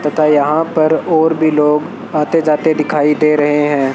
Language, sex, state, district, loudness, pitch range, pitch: Hindi, male, Rajasthan, Bikaner, -13 LUFS, 150-160 Hz, 150 Hz